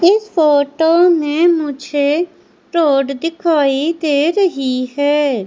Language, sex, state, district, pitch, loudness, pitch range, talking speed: Hindi, female, Madhya Pradesh, Umaria, 300 Hz, -15 LUFS, 285-340 Hz, 100 wpm